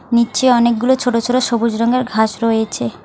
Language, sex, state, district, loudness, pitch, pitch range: Bengali, female, West Bengal, Alipurduar, -15 LUFS, 235 Hz, 225-250 Hz